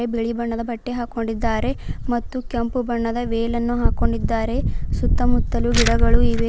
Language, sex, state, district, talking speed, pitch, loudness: Kannada, female, Karnataka, Bidar, 110 wpm, 230 Hz, -22 LUFS